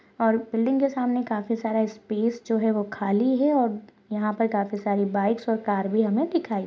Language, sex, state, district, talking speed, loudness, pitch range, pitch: Hindi, female, Chhattisgarh, Rajnandgaon, 190 wpm, -25 LUFS, 210-235 Hz, 225 Hz